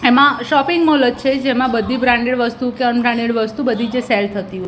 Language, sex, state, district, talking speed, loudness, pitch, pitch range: Gujarati, female, Gujarat, Gandhinagar, 230 wpm, -16 LUFS, 245 Hz, 235-265 Hz